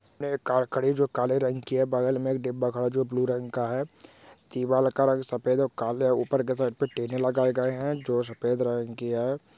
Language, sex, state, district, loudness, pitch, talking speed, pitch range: Hindi, male, West Bengal, Dakshin Dinajpur, -27 LUFS, 130 Hz, 230 wpm, 125-130 Hz